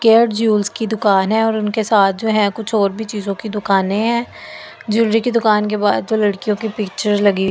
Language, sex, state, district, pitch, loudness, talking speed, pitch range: Hindi, female, Delhi, New Delhi, 215 Hz, -17 LUFS, 225 wpm, 205-220 Hz